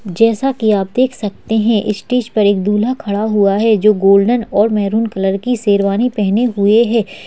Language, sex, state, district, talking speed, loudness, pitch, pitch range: Hindi, female, Uttarakhand, Uttarkashi, 190 wpm, -14 LUFS, 215 Hz, 200-230 Hz